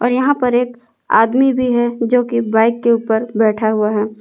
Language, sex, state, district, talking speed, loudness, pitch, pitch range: Hindi, female, Jharkhand, Palamu, 200 wpm, -15 LUFS, 235 Hz, 220-245 Hz